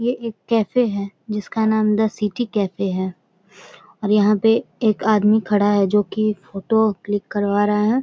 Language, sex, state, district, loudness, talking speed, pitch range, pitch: Maithili, female, Bihar, Samastipur, -19 LUFS, 185 wpm, 205-220 Hz, 210 Hz